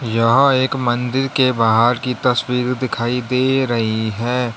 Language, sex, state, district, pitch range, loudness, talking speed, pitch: Hindi, male, Uttar Pradesh, Lalitpur, 115-130 Hz, -17 LUFS, 145 wpm, 125 Hz